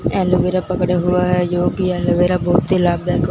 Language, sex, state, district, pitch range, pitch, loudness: Hindi, male, Punjab, Fazilka, 175-180 Hz, 180 Hz, -17 LUFS